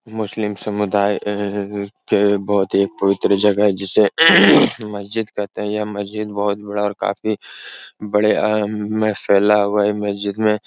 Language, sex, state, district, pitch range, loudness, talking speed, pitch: Hindi, male, Uttar Pradesh, Etah, 100-105 Hz, -18 LUFS, 170 wpm, 105 Hz